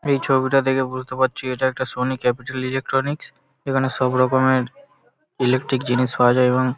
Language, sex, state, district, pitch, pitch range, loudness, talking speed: Bengali, male, West Bengal, Paschim Medinipur, 130 Hz, 125-135 Hz, -20 LUFS, 150 wpm